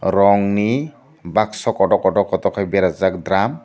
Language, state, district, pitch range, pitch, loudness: Kokborok, Tripura, Dhalai, 95-110 Hz, 100 Hz, -18 LUFS